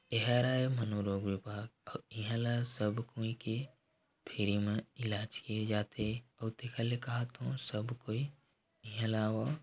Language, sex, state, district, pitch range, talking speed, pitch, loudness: Chhattisgarhi, male, Chhattisgarh, Korba, 105-125 Hz, 145 wpm, 115 Hz, -37 LUFS